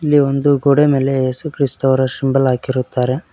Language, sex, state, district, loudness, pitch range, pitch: Kannada, male, Karnataka, Koppal, -15 LUFS, 130-140 Hz, 135 Hz